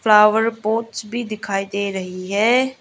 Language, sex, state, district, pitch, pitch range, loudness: Hindi, female, Arunachal Pradesh, Lower Dibang Valley, 215 Hz, 200-230 Hz, -19 LUFS